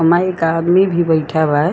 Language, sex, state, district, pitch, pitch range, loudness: Bhojpuri, female, Uttar Pradesh, Gorakhpur, 165 Hz, 160-175 Hz, -15 LUFS